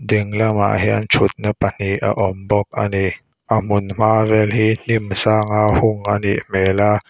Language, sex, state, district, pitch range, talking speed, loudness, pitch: Mizo, male, Mizoram, Aizawl, 100-110 Hz, 185 wpm, -17 LUFS, 105 Hz